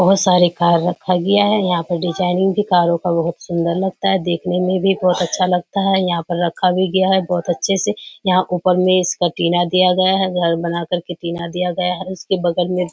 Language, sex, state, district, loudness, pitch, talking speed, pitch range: Hindi, female, Bihar, Kishanganj, -17 LUFS, 180 Hz, 235 wpm, 175-185 Hz